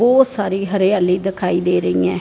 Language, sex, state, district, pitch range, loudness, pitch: Hindi, female, Punjab, Fazilka, 175-200 Hz, -17 LUFS, 190 Hz